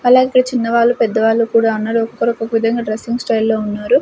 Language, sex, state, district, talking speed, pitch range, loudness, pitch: Telugu, female, Andhra Pradesh, Sri Satya Sai, 195 wpm, 225-240 Hz, -15 LUFS, 230 Hz